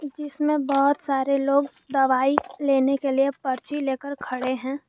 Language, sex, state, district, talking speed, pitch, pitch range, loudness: Hindi, male, Jharkhand, Garhwa, 145 wpm, 275 Hz, 265-285 Hz, -23 LUFS